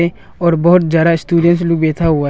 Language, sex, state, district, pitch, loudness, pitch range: Hindi, male, Arunachal Pradesh, Longding, 170 Hz, -13 LUFS, 160-170 Hz